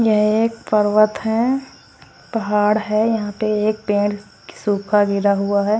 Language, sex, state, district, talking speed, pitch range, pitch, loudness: Hindi, female, Haryana, Charkhi Dadri, 145 wpm, 205-220 Hz, 210 Hz, -18 LUFS